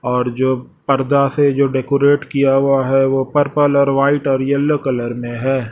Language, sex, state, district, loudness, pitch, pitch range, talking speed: Hindi, male, Chhattisgarh, Raipur, -16 LUFS, 135 Hz, 130-140 Hz, 190 wpm